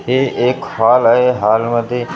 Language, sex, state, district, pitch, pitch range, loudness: Marathi, male, Maharashtra, Gondia, 120 Hz, 115-125 Hz, -14 LUFS